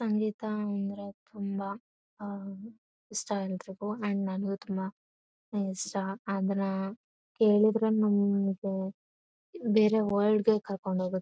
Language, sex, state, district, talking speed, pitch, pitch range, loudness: Kannada, female, Karnataka, Bellary, 95 wpm, 200 Hz, 195-215 Hz, -30 LUFS